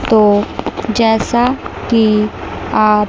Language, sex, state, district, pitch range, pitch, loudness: Hindi, female, Chandigarh, Chandigarh, 210-230 Hz, 220 Hz, -14 LUFS